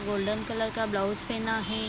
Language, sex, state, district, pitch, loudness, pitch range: Hindi, female, Bihar, Vaishali, 220 Hz, -30 LUFS, 205-225 Hz